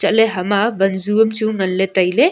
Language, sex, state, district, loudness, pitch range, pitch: Wancho, female, Arunachal Pradesh, Longding, -16 LUFS, 190-220 Hz, 200 Hz